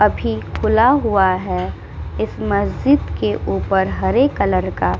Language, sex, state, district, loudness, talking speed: Hindi, female, Uttar Pradesh, Muzaffarnagar, -18 LUFS, 145 wpm